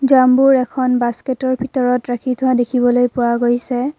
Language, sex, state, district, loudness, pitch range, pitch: Assamese, female, Assam, Kamrup Metropolitan, -16 LUFS, 245-260 Hz, 255 Hz